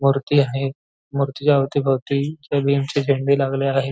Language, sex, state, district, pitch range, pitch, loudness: Marathi, male, Maharashtra, Nagpur, 135-140 Hz, 140 Hz, -20 LUFS